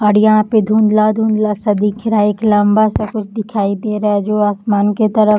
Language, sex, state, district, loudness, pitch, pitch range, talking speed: Hindi, female, Uttar Pradesh, Deoria, -14 LUFS, 210 Hz, 210-215 Hz, 245 wpm